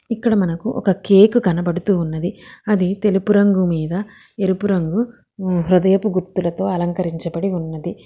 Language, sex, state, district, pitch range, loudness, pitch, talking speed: Telugu, female, Telangana, Hyderabad, 175-205 Hz, -18 LUFS, 190 Hz, 125 wpm